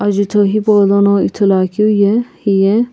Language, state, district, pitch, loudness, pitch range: Sumi, Nagaland, Kohima, 200 Hz, -12 LUFS, 200-210 Hz